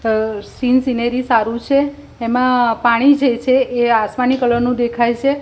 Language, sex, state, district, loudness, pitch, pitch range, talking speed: Gujarati, female, Gujarat, Gandhinagar, -16 LUFS, 245 Hz, 235-255 Hz, 165 wpm